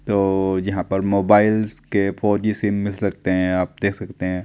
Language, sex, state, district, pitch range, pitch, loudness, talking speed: Hindi, male, Chandigarh, Chandigarh, 95-105 Hz, 100 Hz, -20 LUFS, 200 wpm